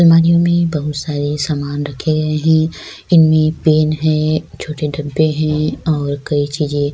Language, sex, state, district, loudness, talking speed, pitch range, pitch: Urdu, female, Bihar, Saharsa, -15 LUFS, 155 wpm, 145-155 Hz, 155 Hz